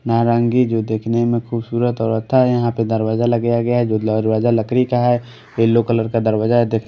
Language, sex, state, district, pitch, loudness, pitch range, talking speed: Hindi, male, Haryana, Rohtak, 115 Hz, -17 LUFS, 115-120 Hz, 200 wpm